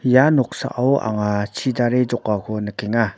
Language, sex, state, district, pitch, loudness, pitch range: Garo, male, Meghalaya, North Garo Hills, 120 Hz, -20 LUFS, 105-130 Hz